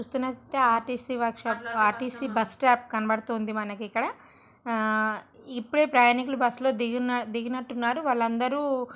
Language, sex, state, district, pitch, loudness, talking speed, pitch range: Telugu, female, Andhra Pradesh, Srikakulam, 240 Hz, -26 LUFS, 115 wpm, 230-255 Hz